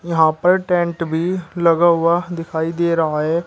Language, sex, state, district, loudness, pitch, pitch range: Hindi, male, Uttar Pradesh, Shamli, -17 LUFS, 170 Hz, 165-175 Hz